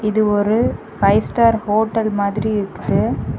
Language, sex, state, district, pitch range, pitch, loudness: Tamil, female, Tamil Nadu, Kanyakumari, 205-220 Hz, 215 Hz, -17 LUFS